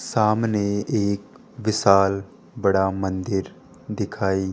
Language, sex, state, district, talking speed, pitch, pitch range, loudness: Hindi, male, Rajasthan, Jaipur, 80 wpm, 100 Hz, 95-105 Hz, -22 LUFS